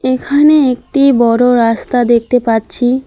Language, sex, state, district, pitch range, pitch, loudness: Bengali, female, West Bengal, Alipurduar, 235-265 Hz, 250 Hz, -11 LUFS